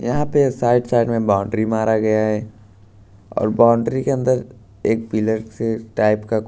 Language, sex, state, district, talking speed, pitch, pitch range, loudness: Hindi, male, Bihar, Katihar, 165 wpm, 110 Hz, 105-120 Hz, -19 LUFS